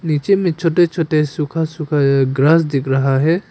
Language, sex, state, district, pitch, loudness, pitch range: Hindi, male, Arunachal Pradesh, Papum Pare, 155 Hz, -16 LUFS, 140-165 Hz